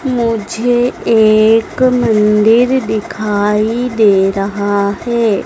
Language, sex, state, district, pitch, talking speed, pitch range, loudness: Hindi, female, Madhya Pradesh, Dhar, 220 Hz, 75 wpm, 210-240 Hz, -12 LUFS